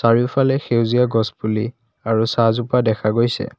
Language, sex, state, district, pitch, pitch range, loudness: Assamese, male, Assam, Kamrup Metropolitan, 115 Hz, 110-120 Hz, -18 LUFS